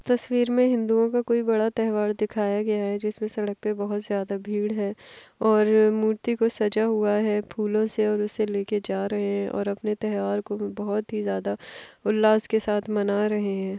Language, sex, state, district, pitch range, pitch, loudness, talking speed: Hindi, female, Bihar, Kishanganj, 205-220 Hz, 210 Hz, -25 LUFS, 190 wpm